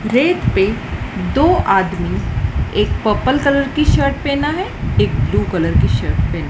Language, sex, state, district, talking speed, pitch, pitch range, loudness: Hindi, female, Madhya Pradesh, Dhar, 165 wpm, 280 Hz, 275-300 Hz, -16 LUFS